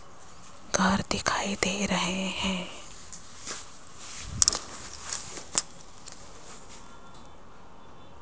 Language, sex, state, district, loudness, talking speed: Hindi, female, Rajasthan, Jaipur, -28 LUFS, 35 wpm